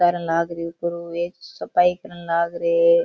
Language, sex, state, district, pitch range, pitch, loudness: Rajasthani, female, Rajasthan, Churu, 170-190 Hz, 175 Hz, -22 LUFS